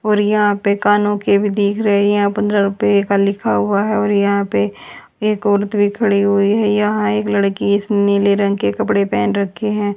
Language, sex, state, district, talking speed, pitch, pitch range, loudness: Hindi, female, Haryana, Charkhi Dadri, 210 wpm, 205 Hz, 200-210 Hz, -16 LUFS